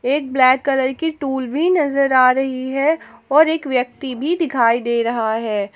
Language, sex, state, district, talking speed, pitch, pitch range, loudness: Hindi, female, Jharkhand, Palamu, 185 wpm, 265 Hz, 245-285 Hz, -17 LUFS